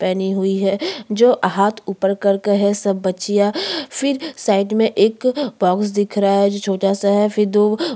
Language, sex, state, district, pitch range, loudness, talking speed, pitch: Hindi, female, Chhattisgarh, Sukma, 195-215 Hz, -17 LUFS, 180 wpm, 205 Hz